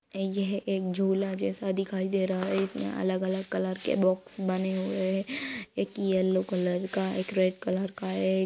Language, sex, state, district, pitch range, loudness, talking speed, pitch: Hindi, male, Uttar Pradesh, Etah, 185-195 Hz, -29 LUFS, 190 wpm, 190 Hz